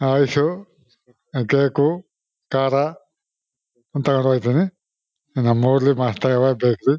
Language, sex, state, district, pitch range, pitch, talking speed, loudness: Kannada, male, Karnataka, Chamarajanagar, 125-145 Hz, 135 Hz, 95 wpm, -20 LUFS